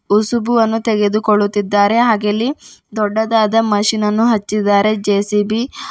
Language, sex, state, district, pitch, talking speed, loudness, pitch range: Kannada, female, Karnataka, Bidar, 215 Hz, 110 wpm, -15 LUFS, 205-225 Hz